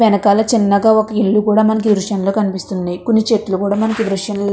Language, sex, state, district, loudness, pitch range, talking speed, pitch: Telugu, female, Andhra Pradesh, Krishna, -15 LUFS, 200-220 Hz, 200 wpm, 210 Hz